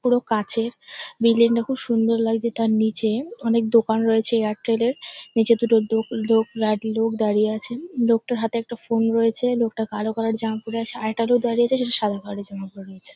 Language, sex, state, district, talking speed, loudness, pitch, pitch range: Bengali, female, West Bengal, North 24 Parganas, 210 wpm, -21 LUFS, 225 Hz, 220-235 Hz